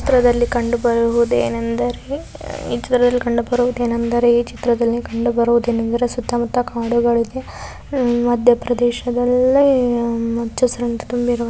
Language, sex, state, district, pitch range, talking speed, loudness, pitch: Kannada, female, Karnataka, Belgaum, 235-245 Hz, 75 wpm, -18 LUFS, 240 Hz